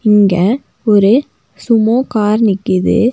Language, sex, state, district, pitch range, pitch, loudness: Tamil, female, Tamil Nadu, Nilgiris, 200-235 Hz, 215 Hz, -12 LUFS